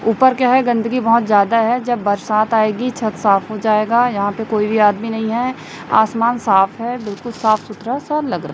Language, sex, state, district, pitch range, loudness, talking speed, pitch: Hindi, female, Chhattisgarh, Raipur, 215-240 Hz, -16 LUFS, 210 wpm, 225 Hz